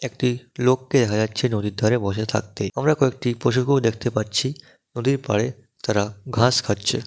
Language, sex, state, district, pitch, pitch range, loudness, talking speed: Bengali, male, West Bengal, Dakshin Dinajpur, 120 Hz, 110-130 Hz, -22 LUFS, 160 wpm